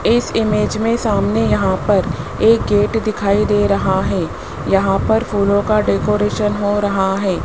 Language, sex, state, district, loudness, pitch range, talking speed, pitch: Hindi, male, Rajasthan, Jaipur, -16 LUFS, 200-220 Hz, 160 wpm, 210 Hz